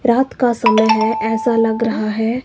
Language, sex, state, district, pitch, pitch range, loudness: Hindi, female, Himachal Pradesh, Shimla, 225 Hz, 220-240 Hz, -16 LUFS